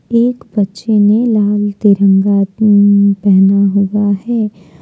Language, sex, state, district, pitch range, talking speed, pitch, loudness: Hindi, female, Jharkhand, Deoghar, 200-210 Hz, 100 wpm, 205 Hz, -11 LUFS